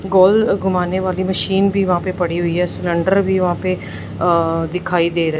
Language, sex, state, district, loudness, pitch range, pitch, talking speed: Hindi, male, Punjab, Fazilka, -17 LUFS, 175-190 Hz, 180 Hz, 190 wpm